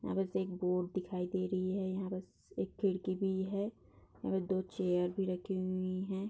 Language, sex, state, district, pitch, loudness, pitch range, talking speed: Hindi, female, Bihar, Bhagalpur, 185 Hz, -37 LUFS, 185-190 Hz, 200 wpm